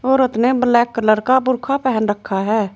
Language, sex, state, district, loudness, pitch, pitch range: Hindi, female, Uttar Pradesh, Saharanpur, -17 LUFS, 240 Hz, 215-255 Hz